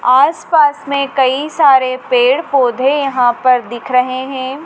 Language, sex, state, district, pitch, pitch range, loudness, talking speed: Hindi, female, Madhya Pradesh, Dhar, 270 Hz, 255-290 Hz, -13 LUFS, 155 wpm